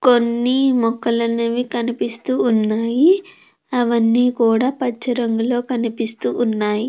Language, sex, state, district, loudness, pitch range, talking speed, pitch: Telugu, female, Andhra Pradesh, Krishna, -18 LUFS, 230-250 Hz, 85 wpm, 235 Hz